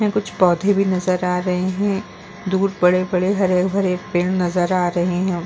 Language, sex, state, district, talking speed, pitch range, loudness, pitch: Hindi, female, Uttar Pradesh, Muzaffarnagar, 175 wpm, 180-195 Hz, -19 LUFS, 185 Hz